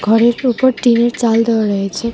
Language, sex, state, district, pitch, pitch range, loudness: Bengali, female, Tripura, West Tripura, 235 Hz, 225-240 Hz, -14 LUFS